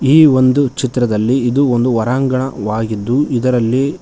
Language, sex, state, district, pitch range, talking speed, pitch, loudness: Kannada, male, Karnataka, Koppal, 120-135 Hz, 105 wpm, 130 Hz, -14 LUFS